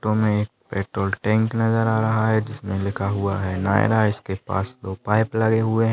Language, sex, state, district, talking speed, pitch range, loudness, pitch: Hindi, male, Maharashtra, Chandrapur, 200 wpm, 100-110 Hz, -22 LUFS, 110 Hz